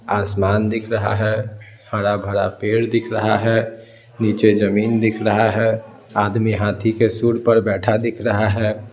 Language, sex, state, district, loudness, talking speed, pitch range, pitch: Hindi, male, Bihar, Patna, -18 LUFS, 160 wpm, 105-115 Hz, 110 Hz